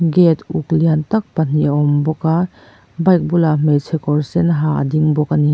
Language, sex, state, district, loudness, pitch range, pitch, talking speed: Mizo, female, Mizoram, Aizawl, -16 LUFS, 150-165 Hz, 155 Hz, 215 wpm